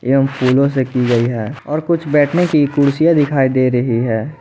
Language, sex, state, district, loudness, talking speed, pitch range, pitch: Hindi, male, Jharkhand, Ranchi, -15 LUFS, 205 wpm, 125-150 Hz, 135 Hz